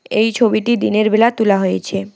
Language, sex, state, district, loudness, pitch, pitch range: Bengali, female, West Bengal, Alipurduar, -15 LUFS, 215 Hz, 195-230 Hz